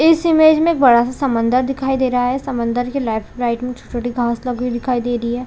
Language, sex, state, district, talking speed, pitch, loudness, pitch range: Hindi, female, Chhattisgarh, Balrampur, 275 wpm, 250 Hz, -17 LUFS, 240-265 Hz